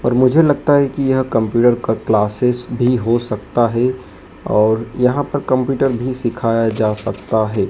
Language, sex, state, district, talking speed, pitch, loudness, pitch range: Hindi, male, Madhya Pradesh, Dhar, 170 wpm, 120 Hz, -16 LUFS, 110-130 Hz